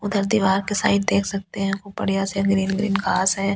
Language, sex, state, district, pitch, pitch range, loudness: Hindi, female, Delhi, New Delhi, 195 Hz, 195-200 Hz, -21 LUFS